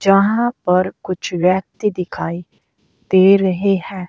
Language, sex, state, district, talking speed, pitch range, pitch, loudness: Hindi, female, Uttar Pradesh, Saharanpur, 115 wpm, 180-195 Hz, 190 Hz, -17 LUFS